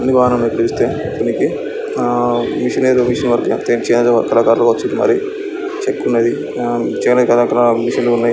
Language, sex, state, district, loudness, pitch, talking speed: Telugu, male, Andhra Pradesh, Srikakulam, -15 LUFS, 120 Hz, 135 wpm